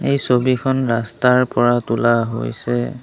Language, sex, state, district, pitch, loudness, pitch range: Assamese, male, Assam, Sonitpur, 120 Hz, -17 LUFS, 115-130 Hz